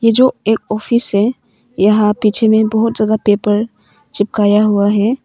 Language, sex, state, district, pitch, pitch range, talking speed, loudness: Hindi, female, Arunachal Pradesh, Papum Pare, 215 Hz, 205-225 Hz, 160 wpm, -14 LUFS